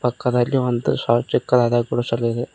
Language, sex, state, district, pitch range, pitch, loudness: Kannada, male, Karnataka, Koppal, 120-125 Hz, 120 Hz, -20 LUFS